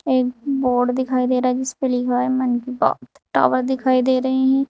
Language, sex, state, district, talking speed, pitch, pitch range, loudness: Hindi, female, Uttar Pradesh, Saharanpur, 215 wpm, 255 Hz, 250-260 Hz, -19 LUFS